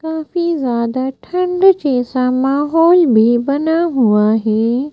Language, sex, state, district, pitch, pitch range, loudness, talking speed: Hindi, female, Madhya Pradesh, Bhopal, 275 Hz, 240-330 Hz, -14 LUFS, 110 wpm